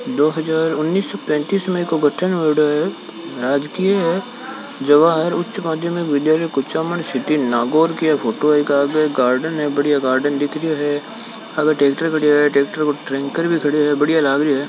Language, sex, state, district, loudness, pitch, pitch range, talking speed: Hindi, male, Rajasthan, Nagaur, -17 LUFS, 155 Hz, 145-165 Hz, 135 wpm